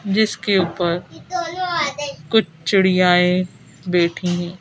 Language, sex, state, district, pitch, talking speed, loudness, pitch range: Hindi, female, Madhya Pradesh, Bhopal, 185 Hz, 90 wpm, -19 LUFS, 175-220 Hz